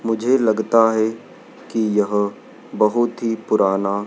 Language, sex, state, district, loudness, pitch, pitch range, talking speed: Hindi, male, Madhya Pradesh, Dhar, -19 LUFS, 110 Hz, 105-115 Hz, 120 wpm